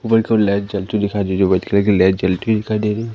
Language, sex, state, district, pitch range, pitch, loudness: Hindi, male, Madhya Pradesh, Katni, 95-110 Hz, 100 Hz, -17 LUFS